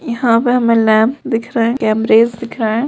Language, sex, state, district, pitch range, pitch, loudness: Hindi, female, Bihar, Purnia, 225-245 Hz, 230 Hz, -14 LUFS